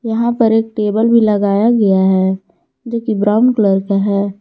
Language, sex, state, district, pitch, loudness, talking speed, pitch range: Hindi, female, Jharkhand, Garhwa, 210 Hz, -14 LUFS, 190 wpm, 200-225 Hz